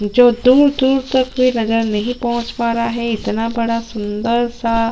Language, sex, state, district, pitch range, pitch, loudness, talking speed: Hindi, female, Chhattisgarh, Sukma, 230-245 Hz, 235 Hz, -16 LUFS, 210 wpm